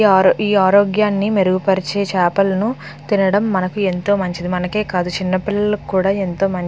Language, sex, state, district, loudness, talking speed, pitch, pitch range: Telugu, female, Andhra Pradesh, Visakhapatnam, -17 LUFS, 155 wpm, 195 Hz, 185-205 Hz